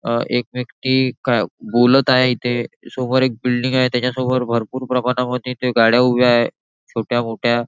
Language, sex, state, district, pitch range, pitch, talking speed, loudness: Marathi, male, Maharashtra, Nagpur, 120-130 Hz, 125 Hz, 140 wpm, -18 LUFS